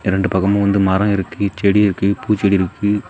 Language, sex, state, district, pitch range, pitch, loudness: Tamil, male, Tamil Nadu, Namakkal, 95-100 Hz, 100 Hz, -16 LUFS